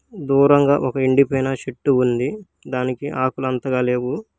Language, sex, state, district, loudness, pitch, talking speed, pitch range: Telugu, male, Telangana, Hyderabad, -19 LUFS, 130 Hz, 125 wpm, 130-140 Hz